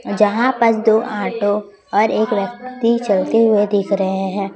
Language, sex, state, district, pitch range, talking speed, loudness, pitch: Hindi, female, Chhattisgarh, Raipur, 200-230 Hz, 160 wpm, -17 LUFS, 210 Hz